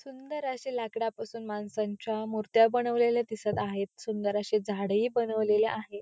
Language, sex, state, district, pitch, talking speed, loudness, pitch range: Marathi, female, Maharashtra, Pune, 220 Hz, 140 wpm, -30 LUFS, 210-235 Hz